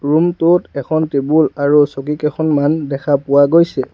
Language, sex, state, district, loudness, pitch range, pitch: Assamese, male, Assam, Sonitpur, -14 LUFS, 140-160 Hz, 150 Hz